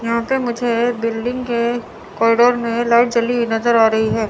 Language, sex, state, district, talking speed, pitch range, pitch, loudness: Hindi, female, Chandigarh, Chandigarh, 195 wpm, 230-240 Hz, 235 Hz, -17 LUFS